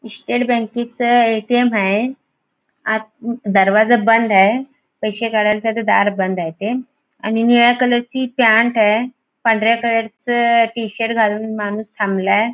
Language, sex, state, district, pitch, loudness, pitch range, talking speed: Marathi, female, Goa, North and South Goa, 225 Hz, -16 LUFS, 215-240 Hz, 125 wpm